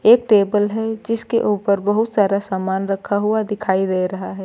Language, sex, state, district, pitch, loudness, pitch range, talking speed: Hindi, female, Uttar Pradesh, Lucknow, 205 Hz, -19 LUFS, 195-220 Hz, 190 wpm